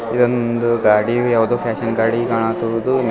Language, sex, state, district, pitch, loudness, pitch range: Kannada, male, Karnataka, Bidar, 115 Hz, -17 LUFS, 115-120 Hz